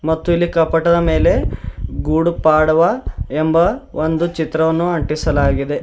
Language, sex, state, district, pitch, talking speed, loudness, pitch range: Kannada, male, Karnataka, Bidar, 160 Hz, 105 wpm, -16 LUFS, 155-170 Hz